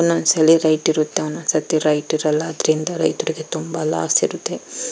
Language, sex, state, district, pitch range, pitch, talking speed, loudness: Kannada, female, Karnataka, Chamarajanagar, 155-165 Hz, 155 Hz, 170 wpm, -19 LUFS